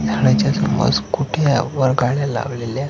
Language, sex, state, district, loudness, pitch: Marathi, male, Maharashtra, Solapur, -18 LUFS, 130 Hz